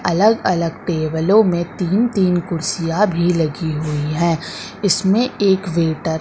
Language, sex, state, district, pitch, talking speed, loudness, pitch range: Hindi, female, Madhya Pradesh, Katni, 175 Hz, 145 wpm, -18 LUFS, 165-195 Hz